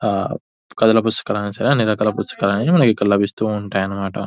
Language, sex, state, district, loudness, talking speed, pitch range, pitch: Telugu, male, Telangana, Nalgonda, -18 LUFS, 210 wpm, 100-110 Hz, 105 Hz